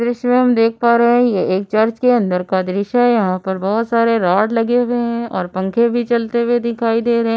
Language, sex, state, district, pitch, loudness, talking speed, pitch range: Hindi, female, Uttar Pradesh, Budaun, 230 Hz, -16 LUFS, 270 wpm, 200-240 Hz